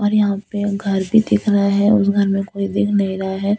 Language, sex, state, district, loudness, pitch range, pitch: Hindi, female, Delhi, New Delhi, -17 LUFS, 195-205 Hz, 200 Hz